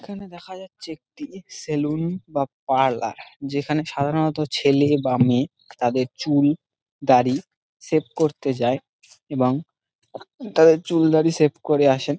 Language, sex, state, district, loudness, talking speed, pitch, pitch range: Bengali, male, West Bengal, Dakshin Dinajpur, -21 LUFS, 130 wpm, 150 Hz, 135-160 Hz